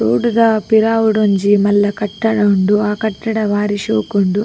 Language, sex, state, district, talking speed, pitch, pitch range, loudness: Tulu, female, Karnataka, Dakshina Kannada, 150 wpm, 210 Hz, 200-220 Hz, -14 LUFS